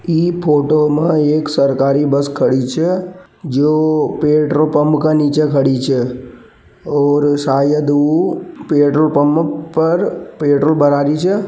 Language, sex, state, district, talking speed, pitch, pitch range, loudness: Marwari, male, Rajasthan, Nagaur, 125 wpm, 150 Hz, 145-155 Hz, -14 LUFS